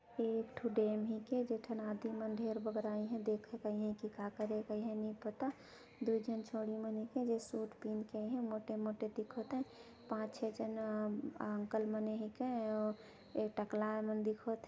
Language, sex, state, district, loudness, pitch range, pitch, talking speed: Chhattisgarhi, female, Chhattisgarh, Jashpur, -41 LUFS, 215-230 Hz, 220 Hz, 205 wpm